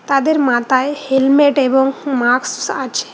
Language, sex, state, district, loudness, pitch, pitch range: Bengali, female, West Bengal, Cooch Behar, -15 LUFS, 270 Hz, 260-285 Hz